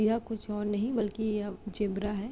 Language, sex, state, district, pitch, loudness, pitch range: Hindi, female, Uttar Pradesh, Jalaun, 210 Hz, -32 LUFS, 205-220 Hz